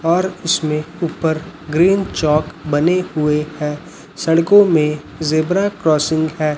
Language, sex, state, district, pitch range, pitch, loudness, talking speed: Hindi, male, Chhattisgarh, Raipur, 150-175 Hz, 160 Hz, -17 LUFS, 120 wpm